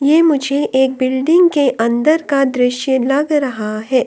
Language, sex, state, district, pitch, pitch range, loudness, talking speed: Hindi, female, Delhi, New Delhi, 270 Hz, 255-295 Hz, -14 LUFS, 160 wpm